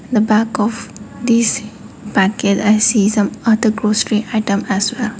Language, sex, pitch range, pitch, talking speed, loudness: English, female, 210-225 Hz, 215 Hz, 160 wpm, -15 LUFS